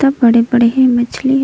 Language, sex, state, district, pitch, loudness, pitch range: Surgujia, female, Chhattisgarh, Sarguja, 245 Hz, -12 LUFS, 235-265 Hz